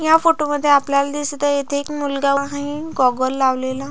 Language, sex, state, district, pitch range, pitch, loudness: Marathi, female, Maharashtra, Pune, 275-290 Hz, 285 Hz, -18 LUFS